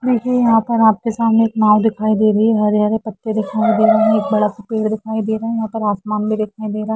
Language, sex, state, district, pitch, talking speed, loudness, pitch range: Hindi, female, Jharkhand, Sahebganj, 220 Hz, 295 wpm, -16 LUFS, 215-225 Hz